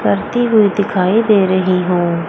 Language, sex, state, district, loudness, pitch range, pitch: Hindi, female, Chandigarh, Chandigarh, -14 LUFS, 180-210 Hz, 190 Hz